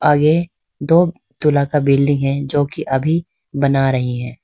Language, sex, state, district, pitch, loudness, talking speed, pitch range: Hindi, female, Arunachal Pradesh, Lower Dibang Valley, 145 Hz, -17 LUFS, 160 wpm, 135-155 Hz